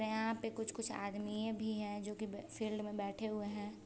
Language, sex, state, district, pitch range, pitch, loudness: Hindi, female, Bihar, Sitamarhi, 210-220 Hz, 215 Hz, -42 LUFS